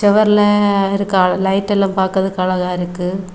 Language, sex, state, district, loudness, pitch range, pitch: Tamil, female, Tamil Nadu, Kanyakumari, -15 LUFS, 185-200 Hz, 190 Hz